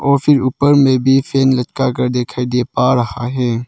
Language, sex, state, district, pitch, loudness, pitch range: Hindi, male, Arunachal Pradesh, Lower Dibang Valley, 130 Hz, -14 LUFS, 125-135 Hz